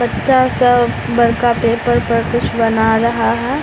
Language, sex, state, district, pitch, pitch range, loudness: Hindi, female, Bihar, Samastipur, 235 Hz, 230-245 Hz, -14 LUFS